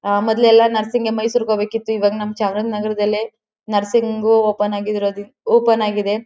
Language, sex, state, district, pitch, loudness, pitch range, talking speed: Kannada, female, Karnataka, Chamarajanagar, 215 Hz, -17 LUFS, 210-225 Hz, 145 wpm